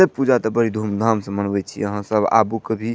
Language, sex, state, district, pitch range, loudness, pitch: Maithili, male, Bihar, Madhepura, 105-115 Hz, -20 LUFS, 110 Hz